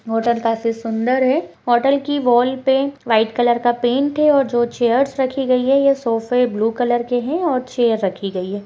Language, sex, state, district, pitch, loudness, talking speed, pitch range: Hindi, female, Maharashtra, Pune, 245 Hz, -18 LUFS, 210 wpm, 230-265 Hz